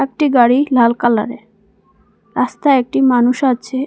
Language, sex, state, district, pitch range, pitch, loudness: Bengali, female, Assam, Hailakandi, 235-265 Hz, 245 Hz, -14 LUFS